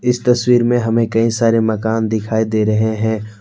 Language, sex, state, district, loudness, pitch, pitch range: Hindi, male, Jharkhand, Deoghar, -16 LUFS, 110 Hz, 110-115 Hz